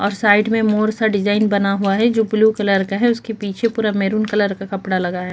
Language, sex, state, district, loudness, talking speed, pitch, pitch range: Hindi, female, Chhattisgarh, Kabirdham, -17 LUFS, 270 wpm, 205 Hz, 195-220 Hz